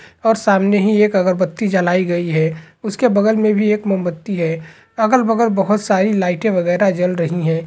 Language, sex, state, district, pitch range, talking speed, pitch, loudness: Hindi, male, Bihar, Purnia, 175-210 Hz, 185 wpm, 195 Hz, -16 LUFS